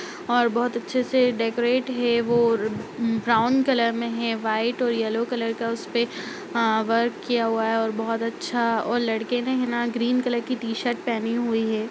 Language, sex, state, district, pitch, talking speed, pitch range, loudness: Hindi, female, Bihar, Darbhanga, 235 Hz, 180 wpm, 225-245 Hz, -24 LUFS